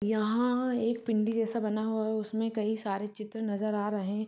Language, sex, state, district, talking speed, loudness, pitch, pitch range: Hindi, female, Bihar, Muzaffarpur, 225 wpm, -31 LUFS, 220 Hz, 215-225 Hz